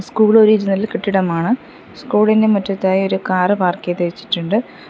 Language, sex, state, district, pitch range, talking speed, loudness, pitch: Malayalam, female, Kerala, Kollam, 185-215 Hz, 110 wpm, -16 LUFS, 195 Hz